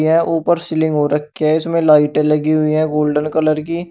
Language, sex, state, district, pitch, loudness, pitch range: Hindi, male, Uttar Pradesh, Shamli, 155 Hz, -15 LUFS, 150-165 Hz